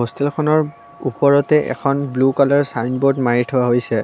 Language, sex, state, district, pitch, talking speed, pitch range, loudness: Assamese, female, Assam, Kamrup Metropolitan, 140 Hz, 135 wpm, 125-140 Hz, -17 LUFS